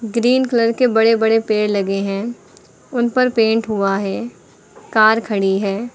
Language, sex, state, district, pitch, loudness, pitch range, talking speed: Hindi, female, Uttar Pradesh, Lucknow, 225 Hz, -17 LUFS, 205-240 Hz, 160 wpm